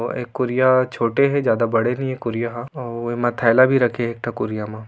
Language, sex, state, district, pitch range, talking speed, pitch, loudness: Hindi, male, Chhattisgarh, Raigarh, 115-130 Hz, 260 wpm, 120 Hz, -20 LUFS